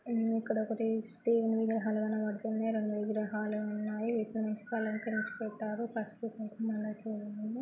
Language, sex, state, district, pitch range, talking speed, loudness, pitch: Telugu, female, Andhra Pradesh, Srikakulam, 215-225 Hz, 110 wpm, -35 LUFS, 220 Hz